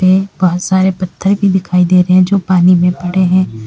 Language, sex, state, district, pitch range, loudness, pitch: Hindi, female, Uttar Pradesh, Lalitpur, 180-190 Hz, -11 LUFS, 185 Hz